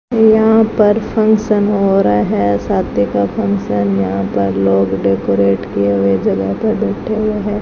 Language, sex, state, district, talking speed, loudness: Hindi, female, Rajasthan, Bikaner, 155 wpm, -14 LUFS